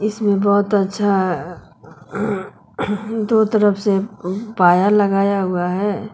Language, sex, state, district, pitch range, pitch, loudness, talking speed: Hindi, female, Uttar Pradesh, Lucknow, 185-210 Hz, 200 Hz, -18 LUFS, 100 wpm